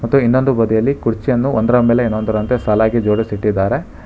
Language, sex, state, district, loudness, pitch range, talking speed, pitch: Kannada, male, Karnataka, Bangalore, -15 LUFS, 110-125 Hz, 135 wpm, 115 Hz